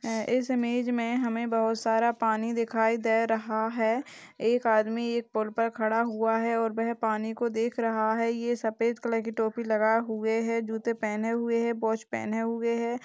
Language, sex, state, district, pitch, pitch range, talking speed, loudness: Hindi, female, Chhattisgarh, Balrampur, 230 Hz, 225-235 Hz, 195 wpm, -28 LUFS